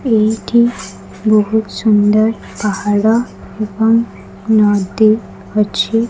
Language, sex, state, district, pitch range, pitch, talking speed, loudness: Odia, female, Odisha, Khordha, 210-225 Hz, 215 Hz, 70 wpm, -14 LUFS